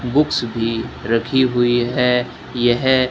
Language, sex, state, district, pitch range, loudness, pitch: Hindi, male, Rajasthan, Bikaner, 115-130 Hz, -18 LUFS, 120 Hz